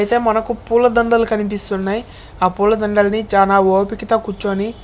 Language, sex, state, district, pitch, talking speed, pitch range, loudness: Telugu, male, Andhra Pradesh, Chittoor, 210 Hz, 160 wpm, 200-225 Hz, -16 LUFS